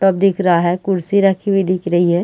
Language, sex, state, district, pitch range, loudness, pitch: Hindi, female, Chhattisgarh, Rajnandgaon, 175-195 Hz, -15 LUFS, 185 Hz